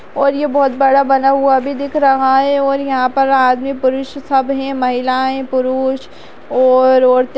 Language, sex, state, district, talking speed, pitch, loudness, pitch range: Kumaoni, female, Uttarakhand, Uttarkashi, 170 wpm, 270 Hz, -14 LUFS, 260-275 Hz